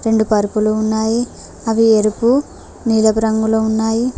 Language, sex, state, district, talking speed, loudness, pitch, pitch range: Telugu, female, Telangana, Mahabubabad, 115 wpm, -16 LUFS, 220 Hz, 220-225 Hz